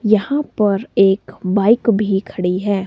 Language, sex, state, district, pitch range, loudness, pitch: Hindi, female, Himachal Pradesh, Shimla, 195-225 Hz, -17 LUFS, 200 Hz